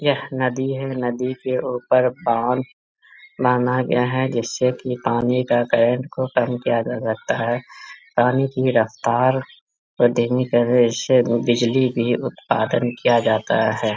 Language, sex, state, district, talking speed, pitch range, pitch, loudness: Hindi, male, Bihar, Araria, 145 wpm, 120-130 Hz, 125 Hz, -20 LUFS